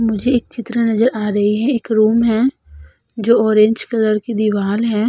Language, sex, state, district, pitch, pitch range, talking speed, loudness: Hindi, female, Uttar Pradesh, Budaun, 220 Hz, 215-235 Hz, 190 wpm, -16 LUFS